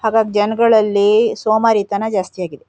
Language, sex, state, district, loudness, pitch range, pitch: Kannada, female, Karnataka, Shimoga, -15 LUFS, 200-220 Hz, 215 Hz